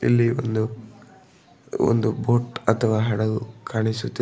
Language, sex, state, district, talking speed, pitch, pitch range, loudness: Kannada, male, Karnataka, Bidar, 100 wpm, 115 Hz, 110-120 Hz, -23 LUFS